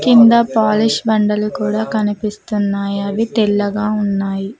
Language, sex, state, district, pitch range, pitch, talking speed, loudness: Telugu, female, Telangana, Mahabubabad, 200-220 Hz, 210 Hz, 105 wpm, -16 LUFS